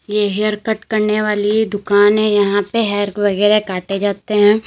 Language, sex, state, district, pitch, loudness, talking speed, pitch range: Hindi, female, Uttar Pradesh, Lalitpur, 210 Hz, -16 LUFS, 180 wpm, 205-215 Hz